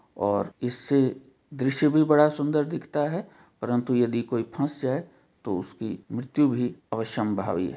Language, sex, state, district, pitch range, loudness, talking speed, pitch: Hindi, male, Jharkhand, Jamtara, 120-150 Hz, -26 LUFS, 145 wpm, 130 Hz